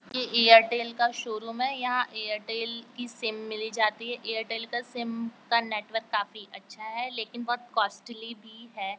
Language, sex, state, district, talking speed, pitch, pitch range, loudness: Hindi, female, Bihar, Jamui, 165 wpm, 230 Hz, 220-240 Hz, -28 LUFS